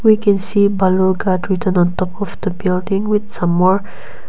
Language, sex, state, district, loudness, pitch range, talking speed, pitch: English, female, Nagaland, Kohima, -16 LUFS, 185-200 Hz, 170 wpm, 190 Hz